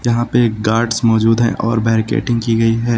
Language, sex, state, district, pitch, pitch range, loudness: Hindi, male, Uttar Pradesh, Lucknow, 115 Hz, 115-120 Hz, -15 LUFS